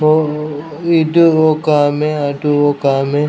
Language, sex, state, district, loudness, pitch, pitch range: Telugu, male, Andhra Pradesh, Krishna, -14 LUFS, 150 Hz, 145-155 Hz